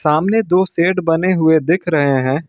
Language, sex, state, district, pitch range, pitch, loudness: Hindi, male, Jharkhand, Ranchi, 155-185 Hz, 165 Hz, -15 LUFS